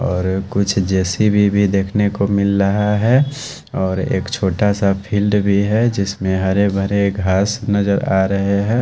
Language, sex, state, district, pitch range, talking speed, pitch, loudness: Hindi, male, Haryana, Charkhi Dadri, 95-105 Hz, 170 wpm, 100 Hz, -17 LUFS